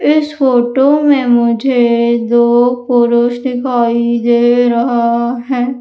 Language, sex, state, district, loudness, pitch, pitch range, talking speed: Hindi, female, Madhya Pradesh, Umaria, -12 LUFS, 240 Hz, 235-255 Hz, 105 wpm